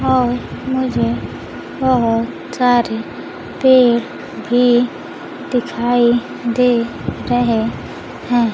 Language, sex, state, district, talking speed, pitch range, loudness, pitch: Hindi, female, Bihar, Kaimur, 70 wpm, 230-250 Hz, -16 LUFS, 245 Hz